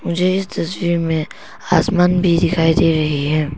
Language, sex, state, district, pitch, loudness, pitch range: Hindi, female, Arunachal Pradesh, Papum Pare, 170 Hz, -17 LUFS, 160-180 Hz